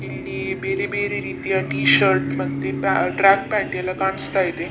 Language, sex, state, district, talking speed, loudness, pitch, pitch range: Kannada, female, Karnataka, Dakshina Kannada, 180 wpm, -19 LUFS, 140 Hz, 130-190 Hz